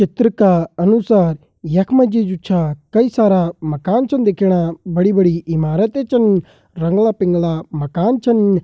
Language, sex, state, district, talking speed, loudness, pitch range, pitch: Garhwali, male, Uttarakhand, Uttarkashi, 140 wpm, -16 LUFS, 170-225 Hz, 190 Hz